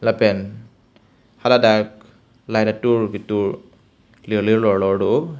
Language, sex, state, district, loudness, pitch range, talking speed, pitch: Karbi, male, Assam, Karbi Anglong, -19 LUFS, 105-120 Hz, 120 wpm, 110 Hz